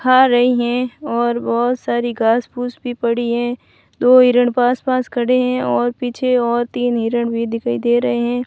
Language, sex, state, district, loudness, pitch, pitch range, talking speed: Hindi, female, Rajasthan, Barmer, -17 LUFS, 240 Hz, 235-250 Hz, 190 wpm